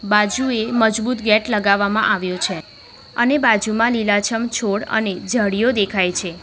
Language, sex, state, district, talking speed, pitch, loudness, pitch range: Gujarati, female, Gujarat, Valsad, 130 wpm, 215 Hz, -18 LUFS, 200-230 Hz